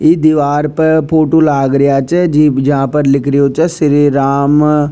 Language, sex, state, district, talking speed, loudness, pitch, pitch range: Rajasthani, male, Rajasthan, Nagaur, 210 wpm, -11 LUFS, 150 Hz, 140-155 Hz